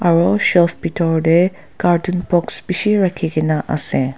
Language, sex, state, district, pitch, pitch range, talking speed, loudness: Nagamese, female, Nagaland, Dimapur, 175 Hz, 160-185 Hz, 145 wpm, -16 LUFS